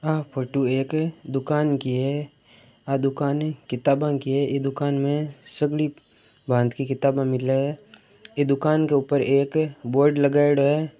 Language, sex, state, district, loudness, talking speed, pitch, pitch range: Marwari, male, Rajasthan, Churu, -23 LUFS, 155 wpm, 140 Hz, 135-150 Hz